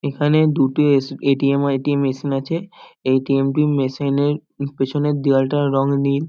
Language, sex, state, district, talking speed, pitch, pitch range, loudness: Bengali, male, West Bengal, North 24 Parganas, 155 wpm, 140 Hz, 135-145 Hz, -19 LUFS